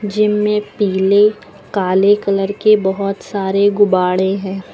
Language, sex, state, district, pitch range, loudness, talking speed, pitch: Hindi, female, Uttar Pradesh, Lucknow, 190-210 Hz, -15 LUFS, 125 wpm, 200 Hz